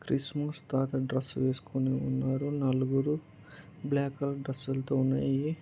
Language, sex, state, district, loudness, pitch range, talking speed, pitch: Telugu, male, Andhra Pradesh, Anantapur, -31 LUFS, 130-140 Hz, 115 wpm, 135 Hz